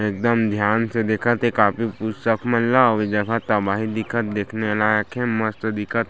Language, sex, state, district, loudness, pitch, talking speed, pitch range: Chhattisgarhi, male, Chhattisgarh, Sarguja, -21 LUFS, 110 Hz, 205 wpm, 105-115 Hz